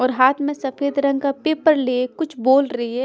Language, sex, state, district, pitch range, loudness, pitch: Hindi, female, Bihar, Patna, 255-285 Hz, -19 LUFS, 275 Hz